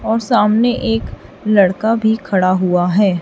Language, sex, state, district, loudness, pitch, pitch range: Hindi, female, Chhattisgarh, Raipur, -15 LUFS, 200 Hz, 180-220 Hz